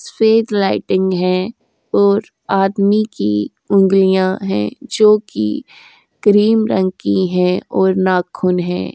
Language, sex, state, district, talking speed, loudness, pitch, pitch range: Hindi, female, Uttar Pradesh, Jyotiba Phule Nagar, 105 wpm, -15 LUFS, 190 Hz, 180-205 Hz